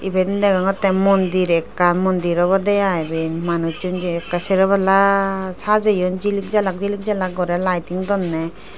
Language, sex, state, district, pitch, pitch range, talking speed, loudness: Chakma, female, Tripura, Dhalai, 185 Hz, 175-195 Hz, 135 wpm, -19 LUFS